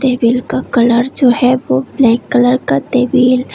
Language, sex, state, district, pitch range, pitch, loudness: Hindi, female, Tripura, West Tripura, 230-255 Hz, 245 Hz, -12 LUFS